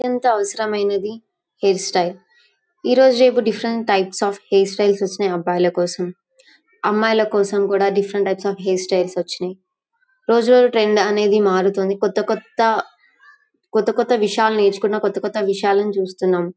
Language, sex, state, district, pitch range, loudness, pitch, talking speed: Telugu, female, Andhra Pradesh, Anantapur, 195-225 Hz, -18 LUFS, 205 Hz, 140 wpm